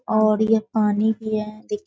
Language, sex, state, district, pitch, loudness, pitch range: Hindi, female, Bihar, Sitamarhi, 215 Hz, -21 LUFS, 215-220 Hz